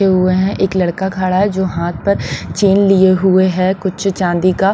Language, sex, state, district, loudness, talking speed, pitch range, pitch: Hindi, female, Punjab, Pathankot, -14 LUFS, 205 wpm, 185-195 Hz, 190 Hz